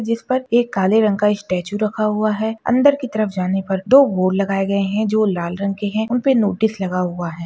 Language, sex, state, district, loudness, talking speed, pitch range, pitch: Hindi, female, Maharashtra, Solapur, -18 LUFS, 250 wpm, 190-225 Hz, 210 Hz